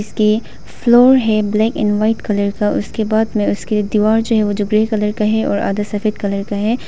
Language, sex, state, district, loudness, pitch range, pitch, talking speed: Hindi, female, Arunachal Pradesh, Papum Pare, -16 LUFS, 205-220 Hz, 215 Hz, 235 wpm